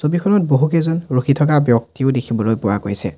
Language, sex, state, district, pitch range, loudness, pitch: Assamese, male, Assam, Sonitpur, 110-155 Hz, -17 LUFS, 135 Hz